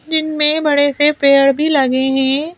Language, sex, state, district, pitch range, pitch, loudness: Hindi, female, Madhya Pradesh, Bhopal, 275-310 Hz, 290 Hz, -12 LUFS